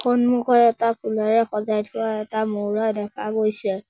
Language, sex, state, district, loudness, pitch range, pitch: Assamese, male, Assam, Sonitpur, -22 LUFS, 215-230 Hz, 220 Hz